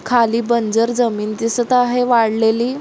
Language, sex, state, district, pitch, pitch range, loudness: Marathi, female, Maharashtra, Solapur, 235 Hz, 225-245 Hz, -16 LUFS